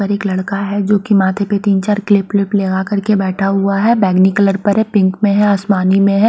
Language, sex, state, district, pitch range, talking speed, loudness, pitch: Hindi, female, Haryana, Rohtak, 195-205 Hz, 255 wpm, -14 LUFS, 200 Hz